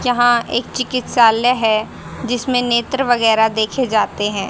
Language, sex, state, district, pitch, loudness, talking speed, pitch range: Hindi, female, Haryana, Jhajjar, 240 Hz, -16 LUFS, 135 wpm, 220-250 Hz